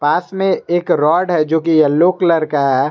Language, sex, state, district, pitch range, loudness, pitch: Hindi, male, Jharkhand, Garhwa, 150-175 Hz, -14 LUFS, 165 Hz